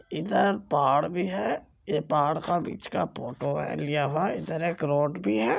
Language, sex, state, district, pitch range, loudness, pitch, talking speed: Maithili, male, Bihar, Supaul, 145-180 Hz, -27 LUFS, 155 Hz, 195 wpm